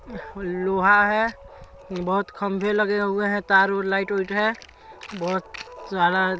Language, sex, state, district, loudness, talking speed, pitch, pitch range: Hindi, male, Chhattisgarh, Balrampur, -22 LUFS, 130 wpm, 195 Hz, 190-205 Hz